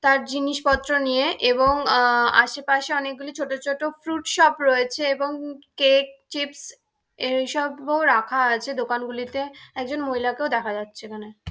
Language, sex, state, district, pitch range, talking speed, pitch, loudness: Bengali, female, West Bengal, Dakshin Dinajpur, 255-290 Hz, 130 wpm, 275 Hz, -22 LUFS